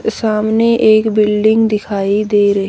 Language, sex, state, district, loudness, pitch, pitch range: Hindi, female, Haryana, Rohtak, -13 LUFS, 215 Hz, 205-220 Hz